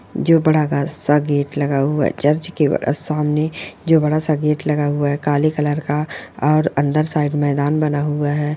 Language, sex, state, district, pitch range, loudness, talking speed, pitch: Hindi, female, Chhattisgarh, Bilaspur, 145-155 Hz, -18 LUFS, 190 wpm, 150 Hz